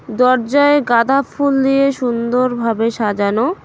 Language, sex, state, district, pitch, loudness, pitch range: Bengali, female, West Bengal, Cooch Behar, 250 Hz, -15 LUFS, 235-275 Hz